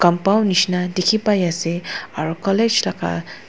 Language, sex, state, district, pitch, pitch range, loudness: Nagamese, female, Nagaland, Dimapur, 180 Hz, 170-200 Hz, -19 LUFS